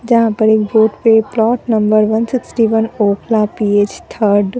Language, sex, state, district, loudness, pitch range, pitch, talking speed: Hindi, female, Delhi, New Delhi, -13 LUFS, 210-230 Hz, 220 Hz, 180 wpm